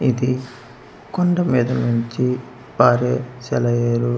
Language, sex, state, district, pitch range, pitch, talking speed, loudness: Telugu, male, Andhra Pradesh, Manyam, 120-130 Hz, 125 Hz, 100 wpm, -19 LUFS